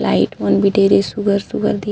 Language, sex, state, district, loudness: Chhattisgarhi, female, Chhattisgarh, Sarguja, -16 LUFS